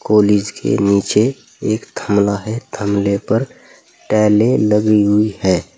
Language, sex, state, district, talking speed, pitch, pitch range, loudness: Hindi, male, Uttar Pradesh, Saharanpur, 125 wpm, 105 Hz, 100-110 Hz, -16 LUFS